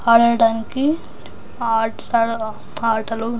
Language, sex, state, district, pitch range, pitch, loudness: Telugu, female, Andhra Pradesh, Anantapur, 225-235 Hz, 230 Hz, -19 LUFS